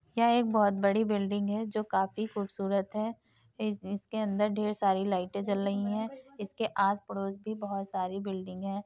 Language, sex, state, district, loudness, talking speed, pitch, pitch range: Hindi, female, Uttar Pradesh, Etah, -31 LUFS, 185 wpm, 200 Hz, 195-215 Hz